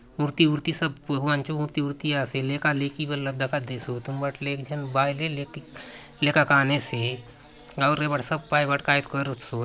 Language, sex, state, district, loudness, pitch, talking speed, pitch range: Halbi, male, Chhattisgarh, Bastar, -25 LUFS, 145 Hz, 185 wpm, 135-150 Hz